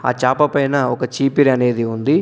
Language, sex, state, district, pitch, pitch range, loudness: Telugu, male, Telangana, Adilabad, 130 Hz, 125-140 Hz, -17 LUFS